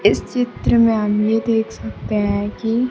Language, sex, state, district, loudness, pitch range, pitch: Hindi, female, Bihar, Kaimur, -18 LUFS, 210-230 Hz, 220 Hz